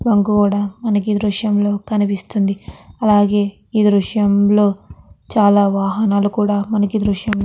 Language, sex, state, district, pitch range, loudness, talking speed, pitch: Telugu, female, Andhra Pradesh, Krishna, 200-210 Hz, -16 LUFS, 135 wpm, 205 Hz